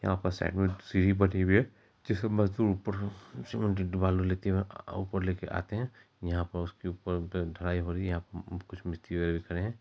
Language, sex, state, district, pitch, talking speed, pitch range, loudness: Maithili, male, Bihar, Supaul, 95 Hz, 215 wpm, 90-100 Hz, -32 LUFS